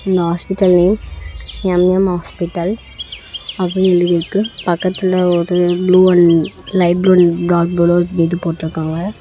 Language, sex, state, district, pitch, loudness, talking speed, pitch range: Tamil, female, Tamil Nadu, Namakkal, 175 Hz, -14 LUFS, 125 wpm, 170-185 Hz